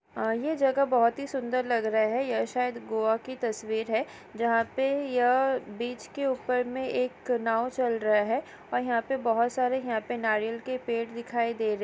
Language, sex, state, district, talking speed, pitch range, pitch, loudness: Hindi, female, Maharashtra, Aurangabad, 210 wpm, 225-255 Hz, 240 Hz, -28 LUFS